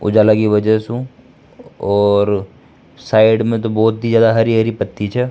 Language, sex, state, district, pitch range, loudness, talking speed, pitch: Rajasthani, male, Rajasthan, Nagaur, 105-115 Hz, -15 LUFS, 170 wpm, 110 Hz